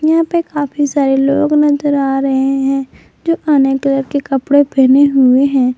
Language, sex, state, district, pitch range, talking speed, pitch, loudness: Hindi, female, Jharkhand, Palamu, 270-290 Hz, 175 wpm, 280 Hz, -13 LUFS